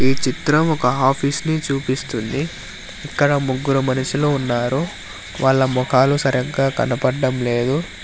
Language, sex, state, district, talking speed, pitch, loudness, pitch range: Telugu, male, Telangana, Hyderabad, 110 wpm, 135 Hz, -19 LUFS, 130-145 Hz